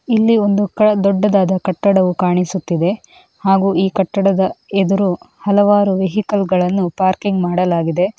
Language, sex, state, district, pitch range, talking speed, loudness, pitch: Kannada, female, Karnataka, Mysore, 185-205 Hz, 95 wpm, -15 LUFS, 195 Hz